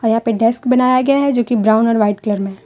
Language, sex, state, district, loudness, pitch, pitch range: Hindi, female, Jharkhand, Deoghar, -15 LUFS, 230 Hz, 220-255 Hz